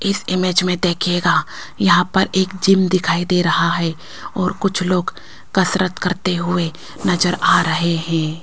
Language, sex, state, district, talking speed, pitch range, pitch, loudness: Hindi, female, Rajasthan, Jaipur, 155 wpm, 170-185 Hz, 180 Hz, -17 LUFS